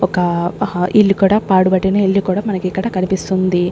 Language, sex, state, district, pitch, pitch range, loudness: Telugu, female, Andhra Pradesh, Sri Satya Sai, 190 Hz, 185-200 Hz, -15 LUFS